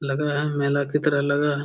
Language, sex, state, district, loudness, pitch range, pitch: Hindi, male, Bihar, Jamui, -23 LUFS, 140-150 Hz, 145 Hz